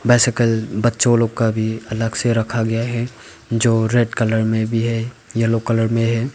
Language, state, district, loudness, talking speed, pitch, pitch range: Hindi, Arunachal Pradesh, Papum Pare, -18 LUFS, 190 wpm, 115 Hz, 110-115 Hz